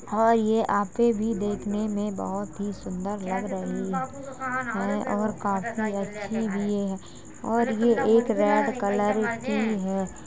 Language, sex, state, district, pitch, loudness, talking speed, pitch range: Hindi, female, Uttar Pradesh, Jalaun, 210 Hz, -26 LUFS, 140 wpm, 200-225 Hz